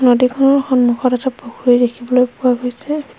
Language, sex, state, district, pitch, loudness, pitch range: Assamese, female, Assam, Hailakandi, 250 Hz, -15 LUFS, 245-265 Hz